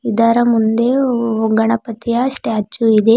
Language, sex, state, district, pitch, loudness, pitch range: Kannada, female, Karnataka, Bidar, 230 Hz, -15 LUFS, 220-240 Hz